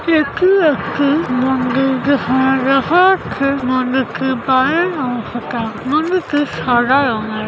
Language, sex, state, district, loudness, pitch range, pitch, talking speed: Bengali, female, West Bengal, Paschim Medinipur, -15 LUFS, 255-300 Hz, 270 Hz, 105 wpm